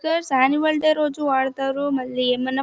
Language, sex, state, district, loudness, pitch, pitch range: Telugu, female, Karnataka, Bellary, -21 LUFS, 270 Hz, 265-305 Hz